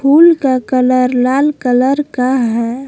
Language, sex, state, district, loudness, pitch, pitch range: Hindi, female, Jharkhand, Palamu, -12 LUFS, 255 Hz, 250-275 Hz